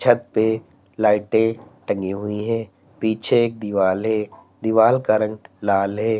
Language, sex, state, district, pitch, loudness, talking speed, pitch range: Hindi, male, Uttar Pradesh, Lalitpur, 110 Hz, -21 LUFS, 145 wpm, 105-115 Hz